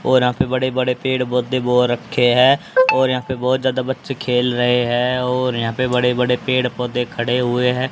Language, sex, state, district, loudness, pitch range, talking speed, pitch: Hindi, male, Haryana, Rohtak, -18 LUFS, 125-130 Hz, 220 wpm, 125 Hz